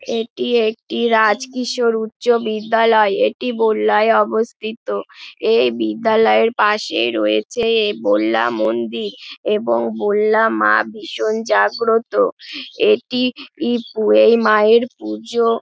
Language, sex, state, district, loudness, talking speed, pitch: Bengali, female, West Bengal, Dakshin Dinajpur, -17 LUFS, 100 wpm, 220 Hz